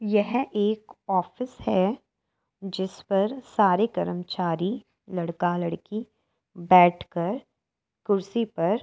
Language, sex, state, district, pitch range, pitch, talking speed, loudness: Hindi, female, Uttar Pradesh, Etah, 175-220 Hz, 195 Hz, 95 wpm, -25 LUFS